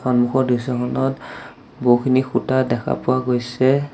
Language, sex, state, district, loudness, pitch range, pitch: Assamese, male, Assam, Sonitpur, -19 LUFS, 125-130 Hz, 130 Hz